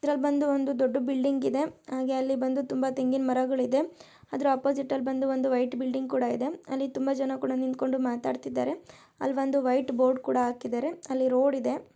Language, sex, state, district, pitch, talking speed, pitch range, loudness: Kannada, male, Karnataka, Shimoga, 265 Hz, 185 wpm, 260-275 Hz, -28 LUFS